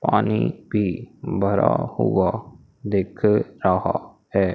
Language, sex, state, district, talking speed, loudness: Hindi, male, Madhya Pradesh, Umaria, 90 wpm, -22 LUFS